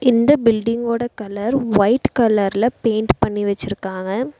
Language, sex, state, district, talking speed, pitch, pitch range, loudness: Tamil, female, Tamil Nadu, Nilgiris, 110 wpm, 230 Hz, 205-240 Hz, -18 LUFS